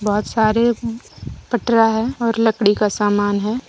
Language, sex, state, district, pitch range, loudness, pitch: Hindi, female, Jharkhand, Deoghar, 210-230 Hz, -18 LUFS, 225 Hz